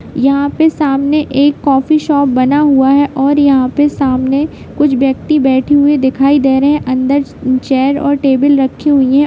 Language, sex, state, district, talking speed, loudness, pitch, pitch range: Hindi, female, Bihar, Jamui, 180 wpm, -11 LUFS, 280 Hz, 265-290 Hz